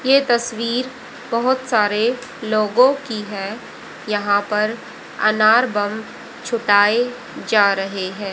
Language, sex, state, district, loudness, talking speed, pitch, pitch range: Hindi, female, Haryana, Rohtak, -18 LUFS, 110 wpm, 225 Hz, 210-245 Hz